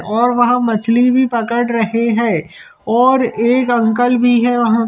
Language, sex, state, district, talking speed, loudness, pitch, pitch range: Hindi, male, Chhattisgarh, Bilaspur, 160 wpm, -14 LUFS, 235 Hz, 230-245 Hz